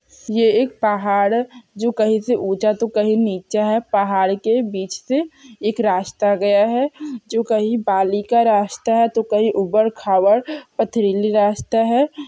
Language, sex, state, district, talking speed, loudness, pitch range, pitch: Hindi, female, Chhattisgarh, Sukma, 155 wpm, -18 LUFS, 205-235 Hz, 220 Hz